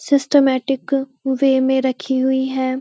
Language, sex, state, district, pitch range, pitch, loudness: Hindi, female, Uttarakhand, Uttarkashi, 260-275 Hz, 265 Hz, -18 LUFS